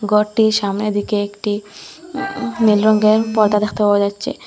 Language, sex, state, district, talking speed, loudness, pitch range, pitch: Bengali, female, Assam, Hailakandi, 160 wpm, -17 LUFS, 205-220 Hz, 210 Hz